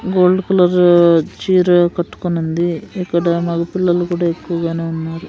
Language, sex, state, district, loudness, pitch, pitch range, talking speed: Telugu, female, Andhra Pradesh, Sri Satya Sai, -15 LUFS, 175 Hz, 170-180 Hz, 115 wpm